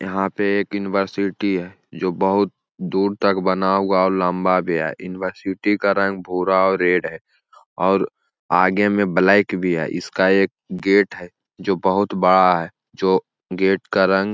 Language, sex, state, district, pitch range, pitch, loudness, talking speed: Hindi, male, Jharkhand, Jamtara, 90-100 Hz, 95 Hz, -19 LUFS, 165 wpm